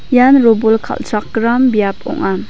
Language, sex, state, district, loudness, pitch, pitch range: Garo, female, Meghalaya, West Garo Hills, -13 LUFS, 225 Hz, 210-250 Hz